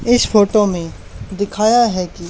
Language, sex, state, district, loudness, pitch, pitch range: Hindi, male, Haryana, Charkhi Dadri, -15 LUFS, 205 Hz, 185-220 Hz